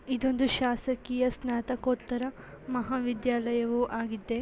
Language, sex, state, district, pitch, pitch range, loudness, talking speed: Kannada, female, Karnataka, Belgaum, 250 Hz, 235-255 Hz, -30 LUFS, 80 wpm